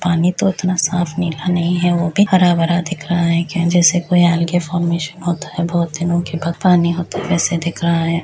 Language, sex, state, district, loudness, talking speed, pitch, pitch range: Hindi, female, Uttar Pradesh, Etah, -16 LUFS, 220 wpm, 175 Hz, 170-175 Hz